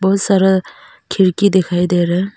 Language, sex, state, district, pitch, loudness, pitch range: Hindi, female, Arunachal Pradesh, Papum Pare, 190 Hz, -14 LUFS, 180-195 Hz